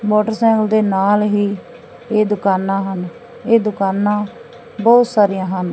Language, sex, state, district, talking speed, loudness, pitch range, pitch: Punjabi, female, Punjab, Fazilka, 125 wpm, -16 LUFS, 195-220 Hz, 210 Hz